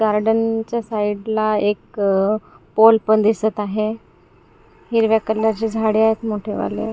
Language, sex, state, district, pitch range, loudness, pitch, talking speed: Marathi, female, Maharashtra, Gondia, 210-225 Hz, -19 LUFS, 220 Hz, 115 wpm